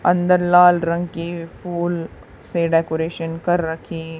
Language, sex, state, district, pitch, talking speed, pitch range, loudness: Hindi, female, Haryana, Charkhi Dadri, 170 Hz, 130 wpm, 165-175 Hz, -19 LUFS